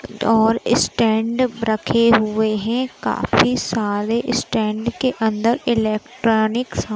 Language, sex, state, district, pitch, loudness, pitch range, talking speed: Hindi, female, Madhya Pradesh, Umaria, 225 Hz, -19 LUFS, 220-235 Hz, 105 wpm